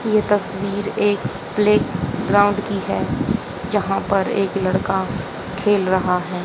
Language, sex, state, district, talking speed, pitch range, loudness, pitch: Hindi, female, Haryana, Jhajjar, 130 wpm, 190-205 Hz, -20 LUFS, 195 Hz